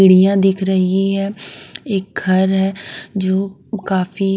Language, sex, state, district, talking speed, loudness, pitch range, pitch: Hindi, female, Bihar, West Champaran, 125 wpm, -17 LUFS, 190-195 Hz, 195 Hz